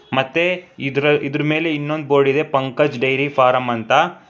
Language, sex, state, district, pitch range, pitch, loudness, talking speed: Kannada, male, Karnataka, Bangalore, 135-155 Hz, 140 Hz, -18 LUFS, 165 wpm